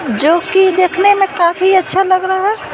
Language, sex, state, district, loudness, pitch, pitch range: Hindi, female, Bihar, Patna, -12 LUFS, 375 Hz, 355-385 Hz